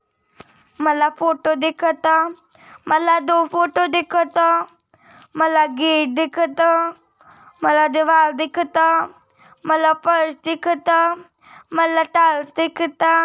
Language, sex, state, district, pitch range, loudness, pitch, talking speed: Marathi, male, Maharashtra, Dhule, 315-335 Hz, -18 LUFS, 325 Hz, 85 wpm